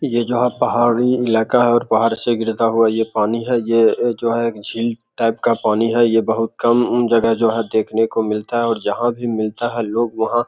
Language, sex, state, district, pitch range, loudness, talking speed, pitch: Hindi, male, Bihar, Begusarai, 110-120 Hz, -17 LUFS, 230 wpm, 115 Hz